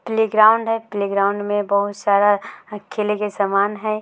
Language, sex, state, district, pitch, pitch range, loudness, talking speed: Maithili, female, Bihar, Samastipur, 205 Hz, 200-215 Hz, -18 LUFS, 180 wpm